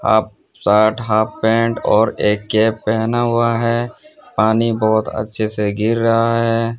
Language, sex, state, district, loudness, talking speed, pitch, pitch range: Hindi, male, Odisha, Sambalpur, -17 LUFS, 150 wpm, 110 Hz, 110-115 Hz